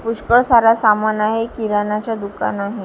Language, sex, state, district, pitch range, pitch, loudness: Marathi, female, Maharashtra, Gondia, 210-230 Hz, 220 Hz, -16 LUFS